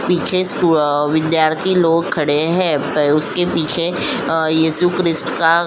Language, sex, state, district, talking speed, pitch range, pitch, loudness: Hindi, female, Uttar Pradesh, Jyotiba Phule Nagar, 160 wpm, 155-175 Hz, 165 Hz, -16 LUFS